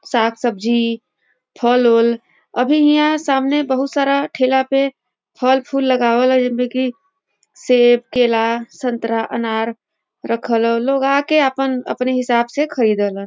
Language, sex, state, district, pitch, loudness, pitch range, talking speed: Bhojpuri, female, Uttar Pradesh, Varanasi, 250 Hz, -16 LUFS, 230-275 Hz, 135 wpm